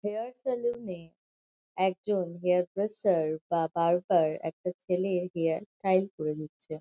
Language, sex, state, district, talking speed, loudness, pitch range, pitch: Bengali, female, West Bengal, Kolkata, 125 wpm, -30 LUFS, 160-200 Hz, 180 Hz